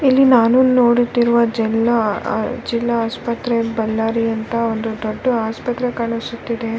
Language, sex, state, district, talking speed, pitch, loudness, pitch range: Kannada, female, Karnataka, Bellary, 125 wpm, 230 Hz, -17 LUFS, 225-240 Hz